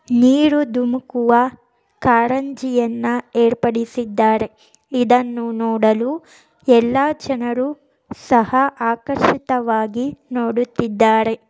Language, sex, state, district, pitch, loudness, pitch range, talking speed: Kannada, female, Karnataka, Chamarajanagar, 245 Hz, -18 LUFS, 230-260 Hz, 55 wpm